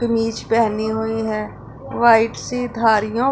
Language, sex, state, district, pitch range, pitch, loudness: Hindi, female, Punjab, Pathankot, 220-235 Hz, 225 Hz, -18 LUFS